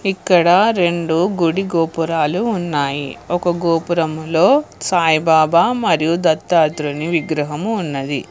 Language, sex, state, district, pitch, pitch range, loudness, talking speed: Telugu, female, Telangana, Hyderabad, 170 Hz, 160-180 Hz, -16 LUFS, 85 wpm